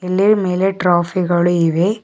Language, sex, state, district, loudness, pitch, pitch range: Kannada, male, Karnataka, Bidar, -15 LUFS, 180 Hz, 175-195 Hz